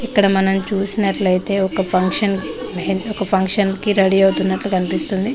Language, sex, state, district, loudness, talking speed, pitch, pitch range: Telugu, female, Telangana, Mahabubabad, -17 LUFS, 125 wpm, 195 Hz, 190-200 Hz